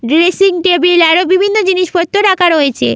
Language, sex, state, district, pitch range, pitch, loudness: Bengali, female, West Bengal, Malda, 335-375 Hz, 355 Hz, -10 LUFS